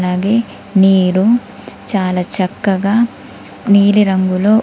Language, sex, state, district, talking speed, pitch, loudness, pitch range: Telugu, female, Telangana, Komaram Bheem, 65 wpm, 195 Hz, -13 LUFS, 185-210 Hz